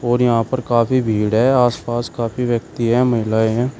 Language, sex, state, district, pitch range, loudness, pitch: Hindi, male, Uttar Pradesh, Shamli, 115-125 Hz, -17 LUFS, 120 Hz